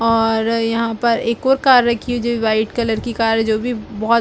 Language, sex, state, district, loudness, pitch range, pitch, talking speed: Hindi, female, Chhattisgarh, Bilaspur, -17 LUFS, 225-235 Hz, 230 Hz, 240 wpm